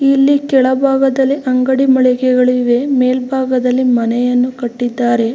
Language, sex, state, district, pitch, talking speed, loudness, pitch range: Kannada, female, Karnataka, Mysore, 255 Hz, 100 wpm, -13 LUFS, 245-265 Hz